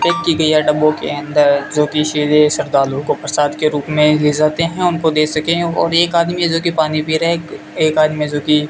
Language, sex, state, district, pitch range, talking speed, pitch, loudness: Hindi, male, Rajasthan, Bikaner, 150-165 Hz, 215 wpm, 155 Hz, -15 LUFS